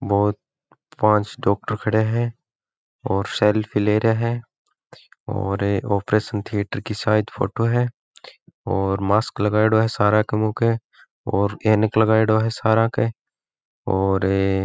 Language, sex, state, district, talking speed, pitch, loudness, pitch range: Marwari, male, Rajasthan, Nagaur, 135 wpm, 110 Hz, -21 LUFS, 100-115 Hz